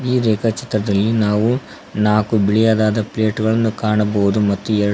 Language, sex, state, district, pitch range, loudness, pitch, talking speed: Kannada, male, Karnataka, Koppal, 105-110 Hz, -17 LUFS, 110 Hz, 145 wpm